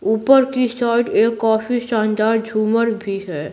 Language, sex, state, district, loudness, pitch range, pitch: Hindi, female, Bihar, Patna, -17 LUFS, 215-235 Hz, 225 Hz